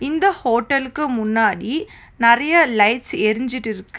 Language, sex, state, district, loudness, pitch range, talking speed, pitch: Tamil, female, Tamil Nadu, Nilgiris, -18 LUFS, 220-300 Hz, 105 wpm, 250 Hz